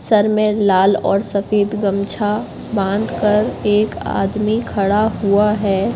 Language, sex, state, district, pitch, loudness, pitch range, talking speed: Hindi, female, Madhya Pradesh, Katni, 210 Hz, -17 LUFS, 200-215 Hz, 130 wpm